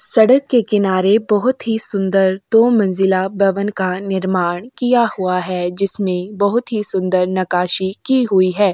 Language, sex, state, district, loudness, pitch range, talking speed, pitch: Hindi, female, Uttar Pradesh, Jyotiba Phule Nagar, -16 LUFS, 185-220 Hz, 150 wpm, 195 Hz